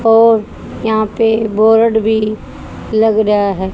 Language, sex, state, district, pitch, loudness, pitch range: Hindi, female, Haryana, Charkhi Dadri, 220 Hz, -13 LUFS, 215-225 Hz